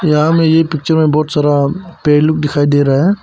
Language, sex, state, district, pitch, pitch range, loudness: Hindi, male, Arunachal Pradesh, Papum Pare, 155 Hz, 145-160 Hz, -12 LUFS